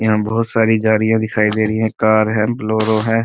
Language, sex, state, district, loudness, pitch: Hindi, male, Bihar, Muzaffarpur, -16 LUFS, 110 Hz